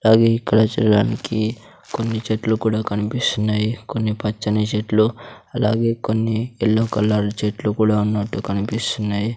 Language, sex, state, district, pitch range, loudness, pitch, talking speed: Telugu, male, Andhra Pradesh, Sri Satya Sai, 105-115 Hz, -20 LUFS, 110 Hz, 115 wpm